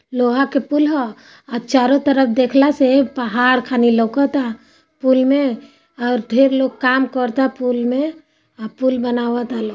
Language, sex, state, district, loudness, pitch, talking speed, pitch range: Hindi, female, Bihar, Gopalganj, -16 LUFS, 260 Hz, 180 wpm, 245-275 Hz